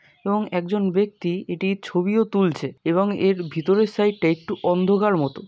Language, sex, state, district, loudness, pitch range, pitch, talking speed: Bengali, male, West Bengal, North 24 Parganas, -22 LUFS, 175-205 Hz, 190 Hz, 165 wpm